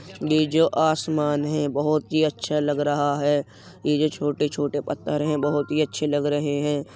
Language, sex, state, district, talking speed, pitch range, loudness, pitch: Hindi, male, Uttar Pradesh, Jyotiba Phule Nagar, 180 wpm, 145-150 Hz, -23 LUFS, 145 Hz